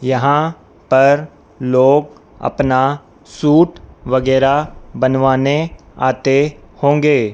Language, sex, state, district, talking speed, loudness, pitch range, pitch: Hindi, female, Madhya Pradesh, Dhar, 75 wpm, -15 LUFS, 130-150 Hz, 135 Hz